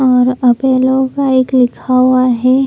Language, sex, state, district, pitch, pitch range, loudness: Hindi, female, Bihar, Lakhisarai, 255 Hz, 250-260 Hz, -12 LUFS